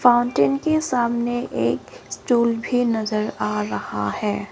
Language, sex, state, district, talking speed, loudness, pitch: Hindi, female, Arunachal Pradesh, Lower Dibang Valley, 130 wpm, -22 LUFS, 235 Hz